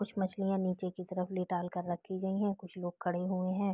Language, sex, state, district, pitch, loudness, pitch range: Hindi, female, Uttar Pradesh, Deoria, 185 Hz, -36 LUFS, 180-195 Hz